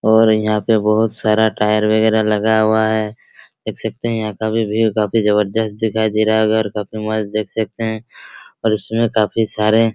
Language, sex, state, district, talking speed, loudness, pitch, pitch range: Hindi, male, Bihar, Araria, 205 wpm, -17 LUFS, 110 Hz, 105-110 Hz